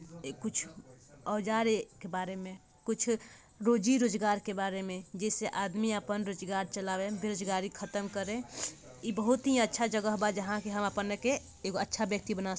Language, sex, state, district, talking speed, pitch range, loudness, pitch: Bhojpuri, female, Bihar, Gopalganj, 180 wpm, 195-220 Hz, -33 LUFS, 205 Hz